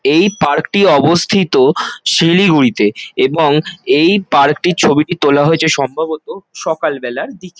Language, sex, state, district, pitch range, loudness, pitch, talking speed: Bengali, male, West Bengal, Jalpaiguri, 150-200 Hz, -12 LUFS, 175 Hz, 125 wpm